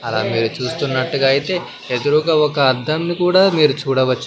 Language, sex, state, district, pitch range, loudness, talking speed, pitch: Telugu, male, Andhra Pradesh, Sri Satya Sai, 130-155 Hz, -17 LUFS, 155 wpm, 140 Hz